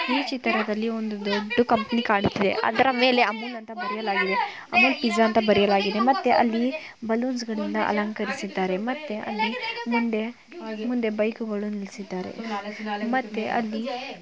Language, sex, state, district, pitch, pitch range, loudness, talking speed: Kannada, female, Karnataka, Mysore, 225 Hz, 210-245 Hz, -24 LUFS, 105 wpm